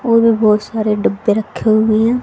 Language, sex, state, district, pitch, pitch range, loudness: Hindi, female, Haryana, Rohtak, 220 Hz, 215-230 Hz, -14 LUFS